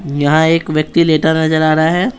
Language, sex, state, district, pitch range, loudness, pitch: Hindi, male, Bihar, Patna, 155-165 Hz, -13 LUFS, 160 Hz